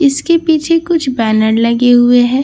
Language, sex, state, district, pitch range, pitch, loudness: Hindi, female, Bihar, Katihar, 240-320 Hz, 260 Hz, -11 LUFS